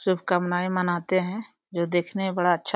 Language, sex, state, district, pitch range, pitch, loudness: Hindi, female, Uttar Pradesh, Deoria, 175-185 Hz, 180 Hz, -26 LUFS